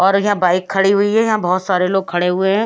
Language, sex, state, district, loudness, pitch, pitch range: Hindi, female, Odisha, Malkangiri, -16 LUFS, 195 Hz, 180-200 Hz